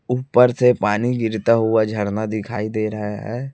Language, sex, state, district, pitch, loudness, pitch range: Hindi, male, Chhattisgarh, Raipur, 110 Hz, -19 LUFS, 110-125 Hz